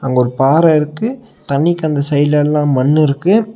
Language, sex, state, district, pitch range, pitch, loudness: Tamil, male, Tamil Nadu, Nilgiris, 140-170 Hz, 150 Hz, -13 LUFS